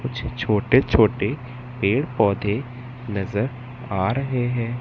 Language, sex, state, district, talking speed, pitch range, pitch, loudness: Hindi, male, Madhya Pradesh, Katni, 110 wpm, 105-125 Hz, 120 Hz, -22 LUFS